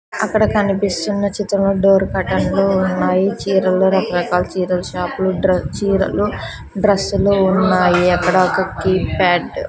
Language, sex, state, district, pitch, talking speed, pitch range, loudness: Telugu, female, Andhra Pradesh, Sri Satya Sai, 190 Hz, 115 wpm, 180-195 Hz, -16 LUFS